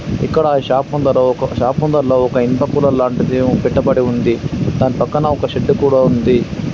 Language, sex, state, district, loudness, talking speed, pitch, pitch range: Telugu, male, Telangana, Adilabad, -14 LUFS, 170 wpm, 130 Hz, 125-145 Hz